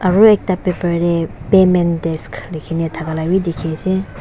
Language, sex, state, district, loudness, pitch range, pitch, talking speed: Nagamese, female, Nagaland, Dimapur, -16 LUFS, 160-185 Hz, 170 Hz, 185 wpm